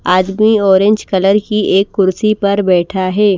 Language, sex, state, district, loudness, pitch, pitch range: Hindi, female, Madhya Pradesh, Bhopal, -12 LUFS, 200 Hz, 190-210 Hz